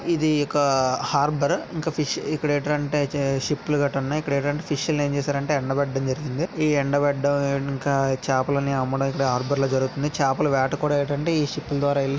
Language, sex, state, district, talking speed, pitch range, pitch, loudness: Telugu, male, Andhra Pradesh, Visakhapatnam, 170 wpm, 135-150 Hz, 145 Hz, -23 LUFS